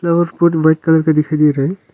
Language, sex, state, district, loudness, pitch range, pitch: Hindi, male, Arunachal Pradesh, Longding, -14 LUFS, 155-170 Hz, 160 Hz